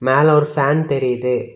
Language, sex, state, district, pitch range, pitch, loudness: Tamil, male, Tamil Nadu, Kanyakumari, 125-150 Hz, 140 Hz, -16 LUFS